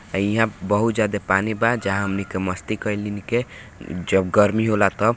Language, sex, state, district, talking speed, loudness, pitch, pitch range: Hindi, male, Bihar, Gopalganj, 175 wpm, -21 LUFS, 105 Hz, 95-110 Hz